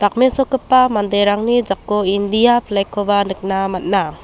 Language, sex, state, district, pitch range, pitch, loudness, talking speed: Garo, female, Meghalaya, West Garo Hills, 195-240 Hz, 205 Hz, -16 LUFS, 100 wpm